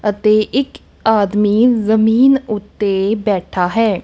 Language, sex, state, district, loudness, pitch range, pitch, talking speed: Punjabi, female, Punjab, Kapurthala, -15 LUFS, 205-225 Hz, 215 Hz, 105 wpm